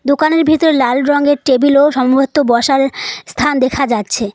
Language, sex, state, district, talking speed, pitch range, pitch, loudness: Bengali, female, West Bengal, Cooch Behar, 150 wpm, 255-290 Hz, 275 Hz, -13 LUFS